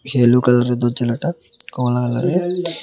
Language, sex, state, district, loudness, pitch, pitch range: Bengali, male, Tripura, West Tripura, -18 LUFS, 125 Hz, 120-170 Hz